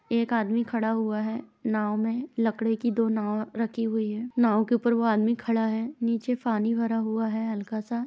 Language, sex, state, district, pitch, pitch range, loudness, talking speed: Hindi, female, Uttar Pradesh, Jalaun, 225 Hz, 220-235 Hz, -27 LUFS, 215 wpm